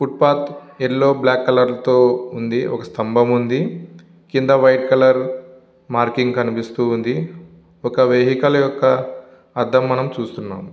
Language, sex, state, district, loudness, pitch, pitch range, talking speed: Telugu, male, Andhra Pradesh, Visakhapatnam, -17 LUFS, 130 Hz, 125-140 Hz, 125 wpm